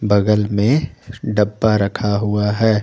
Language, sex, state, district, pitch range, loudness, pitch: Hindi, male, Jharkhand, Garhwa, 105-110 Hz, -17 LUFS, 105 Hz